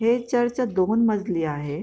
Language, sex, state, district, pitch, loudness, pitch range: Marathi, female, Maharashtra, Pune, 220 Hz, -23 LUFS, 180-240 Hz